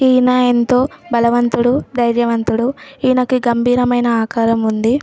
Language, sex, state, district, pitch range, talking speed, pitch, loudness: Telugu, female, Telangana, Nalgonda, 235-255 Hz, 120 wpm, 245 Hz, -15 LUFS